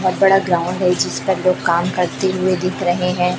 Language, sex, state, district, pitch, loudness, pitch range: Hindi, female, Chhattisgarh, Raipur, 180 Hz, -17 LUFS, 180-185 Hz